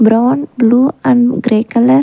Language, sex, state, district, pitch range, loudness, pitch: English, female, Punjab, Kapurthala, 235-255 Hz, -12 LUFS, 245 Hz